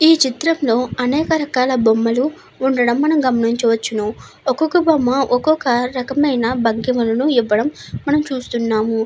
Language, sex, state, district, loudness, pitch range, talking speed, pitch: Telugu, female, Andhra Pradesh, Anantapur, -17 LUFS, 230-290 Hz, 105 wpm, 255 Hz